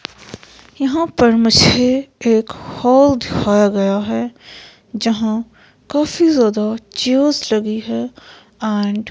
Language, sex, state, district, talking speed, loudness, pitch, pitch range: Hindi, female, Himachal Pradesh, Shimla, 105 wpm, -15 LUFS, 230 Hz, 215-260 Hz